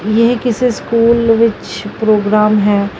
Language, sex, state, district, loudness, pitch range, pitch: Punjabi, female, Karnataka, Bangalore, -12 LUFS, 210-235 Hz, 220 Hz